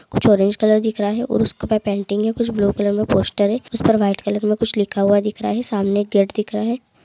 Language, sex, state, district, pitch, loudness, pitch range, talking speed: Hindi, male, West Bengal, Kolkata, 210 Hz, -19 LUFS, 205-220 Hz, 280 wpm